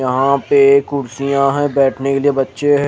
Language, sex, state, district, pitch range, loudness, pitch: Hindi, male, Odisha, Khordha, 135-140 Hz, -14 LUFS, 140 Hz